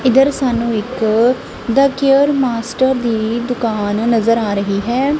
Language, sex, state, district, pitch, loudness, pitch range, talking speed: Punjabi, female, Punjab, Kapurthala, 240 Hz, -15 LUFS, 225-265 Hz, 140 wpm